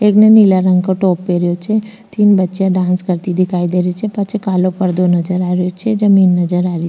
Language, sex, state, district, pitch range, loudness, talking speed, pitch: Rajasthani, female, Rajasthan, Nagaur, 180-205 Hz, -13 LUFS, 235 wpm, 185 Hz